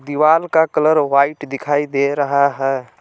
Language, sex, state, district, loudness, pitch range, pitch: Hindi, male, Jharkhand, Palamu, -16 LUFS, 140-155 Hz, 145 Hz